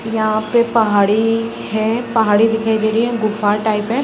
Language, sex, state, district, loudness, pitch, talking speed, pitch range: Hindi, female, Bihar, Sitamarhi, -16 LUFS, 220 Hz, 180 wpm, 215-225 Hz